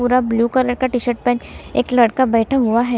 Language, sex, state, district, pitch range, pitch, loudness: Hindi, female, Chhattisgarh, Kabirdham, 235-255 Hz, 245 Hz, -17 LUFS